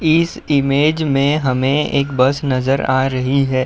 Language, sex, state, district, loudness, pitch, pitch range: Hindi, male, Uttar Pradesh, Budaun, -16 LUFS, 140 Hz, 130-145 Hz